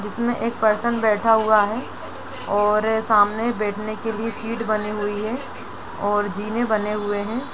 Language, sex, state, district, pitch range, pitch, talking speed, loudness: Hindi, female, Uttar Pradesh, Jalaun, 210-230 Hz, 215 Hz, 160 wpm, -21 LUFS